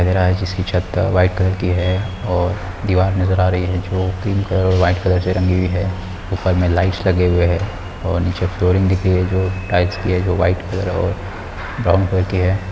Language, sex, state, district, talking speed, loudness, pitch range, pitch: Hindi, male, Bihar, Kishanganj, 230 wpm, -18 LUFS, 90-95 Hz, 95 Hz